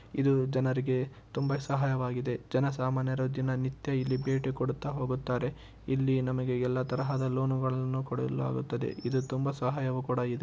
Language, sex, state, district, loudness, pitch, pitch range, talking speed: Kannada, male, Karnataka, Shimoga, -31 LUFS, 130 Hz, 125-135 Hz, 115 wpm